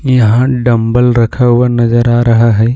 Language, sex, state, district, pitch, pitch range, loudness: Hindi, male, Jharkhand, Ranchi, 120 Hz, 115-125 Hz, -10 LUFS